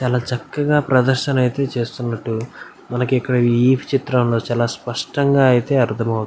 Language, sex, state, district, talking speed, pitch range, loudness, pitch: Telugu, male, Andhra Pradesh, Anantapur, 115 wpm, 120-135 Hz, -18 LUFS, 125 Hz